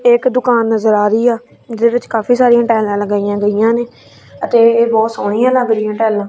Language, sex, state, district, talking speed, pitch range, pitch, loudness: Punjabi, female, Punjab, Kapurthala, 210 wpm, 215-240 Hz, 230 Hz, -13 LUFS